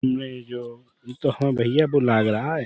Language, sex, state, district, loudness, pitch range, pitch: Urdu, male, Uttar Pradesh, Budaun, -22 LUFS, 120-140 Hz, 125 Hz